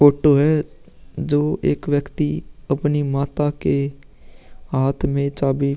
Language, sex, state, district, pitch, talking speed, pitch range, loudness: Hindi, male, Uttar Pradesh, Muzaffarnagar, 145 Hz, 125 wpm, 140-145 Hz, -20 LUFS